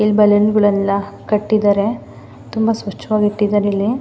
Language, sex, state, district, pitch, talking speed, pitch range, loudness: Kannada, female, Karnataka, Mysore, 205 Hz, 120 wpm, 200-215 Hz, -16 LUFS